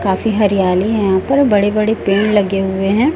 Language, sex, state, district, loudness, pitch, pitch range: Hindi, female, Chhattisgarh, Raipur, -14 LUFS, 205 Hz, 195-220 Hz